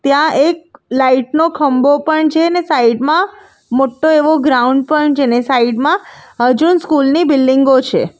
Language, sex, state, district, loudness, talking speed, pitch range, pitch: Gujarati, female, Gujarat, Valsad, -12 LUFS, 170 wpm, 260-315 Hz, 290 Hz